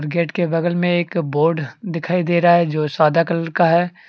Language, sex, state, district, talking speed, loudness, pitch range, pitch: Hindi, male, Jharkhand, Deoghar, 220 wpm, -18 LUFS, 165-175 Hz, 170 Hz